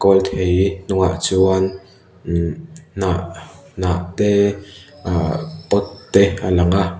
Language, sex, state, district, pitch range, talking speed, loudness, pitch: Mizo, male, Mizoram, Aizawl, 90-100 Hz, 110 wpm, -18 LUFS, 95 Hz